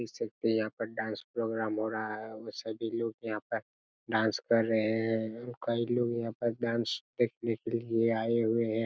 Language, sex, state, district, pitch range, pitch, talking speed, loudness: Hindi, male, Chhattisgarh, Raigarh, 110-115 Hz, 115 Hz, 215 wpm, -32 LUFS